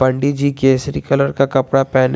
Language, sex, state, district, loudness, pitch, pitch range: Hindi, male, Jharkhand, Garhwa, -16 LUFS, 135 Hz, 130-140 Hz